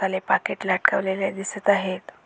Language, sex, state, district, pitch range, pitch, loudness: Marathi, female, Maharashtra, Dhule, 190-195 Hz, 195 Hz, -23 LUFS